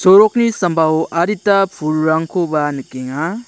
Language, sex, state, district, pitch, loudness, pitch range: Garo, male, Meghalaya, South Garo Hills, 170 Hz, -15 LUFS, 155-200 Hz